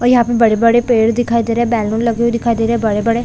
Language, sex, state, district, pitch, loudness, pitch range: Hindi, female, Chhattisgarh, Bilaspur, 235 Hz, -14 LUFS, 230-235 Hz